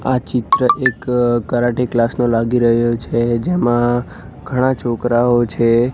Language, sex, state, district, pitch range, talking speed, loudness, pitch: Gujarati, male, Gujarat, Gandhinagar, 120-125 Hz, 130 wpm, -16 LUFS, 120 Hz